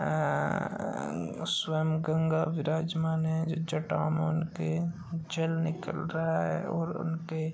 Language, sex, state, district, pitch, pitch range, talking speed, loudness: Hindi, male, Uttar Pradesh, Gorakhpur, 160 Hz, 160-165 Hz, 95 wpm, -31 LUFS